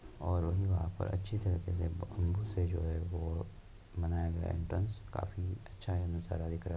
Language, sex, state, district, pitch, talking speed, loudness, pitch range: Hindi, male, Rajasthan, Nagaur, 90 Hz, 185 wpm, -37 LUFS, 85-95 Hz